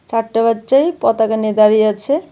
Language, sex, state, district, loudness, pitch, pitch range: Bengali, female, Tripura, West Tripura, -14 LUFS, 225 Hz, 215-270 Hz